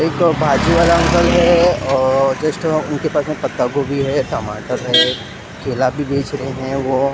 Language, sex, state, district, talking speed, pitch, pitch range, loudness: Hindi, male, Maharashtra, Mumbai Suburban, 175 wpm, 140 Hz, 130-155 Hz, -16 LUFS